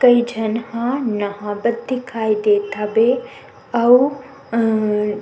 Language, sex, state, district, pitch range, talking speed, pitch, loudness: Chhattisgarhi, female, Chhattisgarh, Sukma, 210-245 Hz, 125 wpm, 230 Hz, -18 LUFS